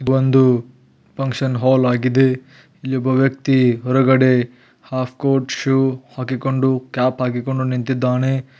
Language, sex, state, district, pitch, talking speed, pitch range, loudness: Kannada, male, Karnataka, Belgaum, 130 Hz, 105 wpm, 125-135 Hz, -18 LUFS